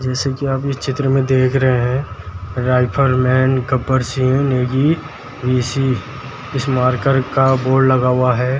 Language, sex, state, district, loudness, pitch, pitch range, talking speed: Hindi, male, Uttarakhand, Tehri Garhwal, -16 LUFS, 130 Hz, 125-135 Hz, 145 wpm